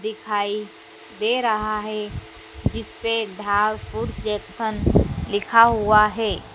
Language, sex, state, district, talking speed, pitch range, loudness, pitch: Hindi, female, Madhya Pradesh, Dhar, 90 wpm, 210-225 Hz, -21 LUFS, 215 Hz